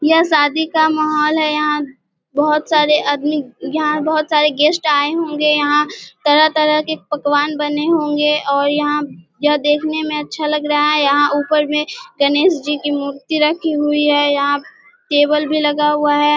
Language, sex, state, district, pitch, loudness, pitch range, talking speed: Hindi, female, Bihar, Vaishali, 300 Hz, -15 LUFS, 290-305 Hz, 165 wpm